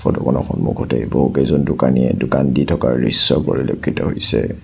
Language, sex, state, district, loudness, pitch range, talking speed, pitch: Assamese, male, Assam, Sonitpur, -16 LUFS, 65-70 Hz, 130 wpm, 65 Hz